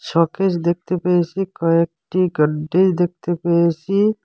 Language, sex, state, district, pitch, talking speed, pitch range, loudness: Bengali, female, Assam, Hailakandi, 175 Hz, 100 wpm, 165-185 Hz, -19 LUFS